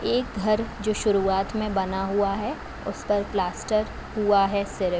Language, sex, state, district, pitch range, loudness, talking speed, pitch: Hindi, female, Uttar Pradesh, Jalaun, 195-215 Hz, -25 LUFS, 170 wpm, 205 Hz